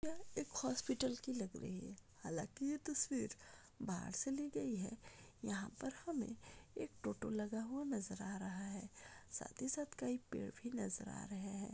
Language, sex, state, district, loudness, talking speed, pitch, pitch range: Hindi, female, Rajasthan, Churu, -45 LUFS, 185 wpm, 225 Hz, 195-265 Hz